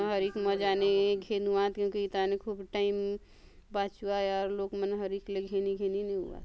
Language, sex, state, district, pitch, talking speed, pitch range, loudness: Halbi, female, Chhattisgarh, Bastar, 200 Hz, 175 wpm, 195-200 Hz, -32 LUFS